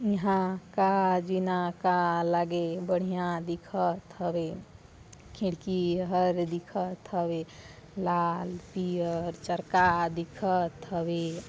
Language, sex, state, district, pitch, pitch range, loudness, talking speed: Chhattisgarhi, female, Chhattisgarh, Balrampur, 175 Hz, 170-185 Hz, -29 LUFS, 95 wpm